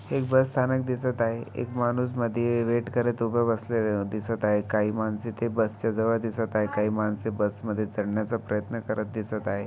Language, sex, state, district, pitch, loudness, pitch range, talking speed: Marathi, male, Maharashtra, Aurangabad, 115 Hz, -27 LUFS, 105-120 Hz, 185 wpm